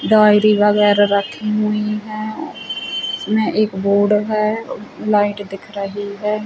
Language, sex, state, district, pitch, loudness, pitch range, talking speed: Hindi, female, Chhattisgarh, Bilaspur, 210 Hz, -17 LUFS, 205-215 Hz, 120 wpm